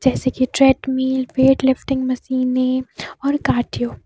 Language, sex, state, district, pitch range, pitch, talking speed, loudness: Hindi, female, Jharkhand, Deoghar, 255-265 Hz, 260 Hz, 135 wpm, -18 LUFS